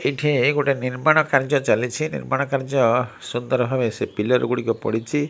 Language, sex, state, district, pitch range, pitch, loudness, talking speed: Odia, male, Odisha, Malkangiri, 125-145 Hz, 130 Hz, -21 LUFS, 145 wpm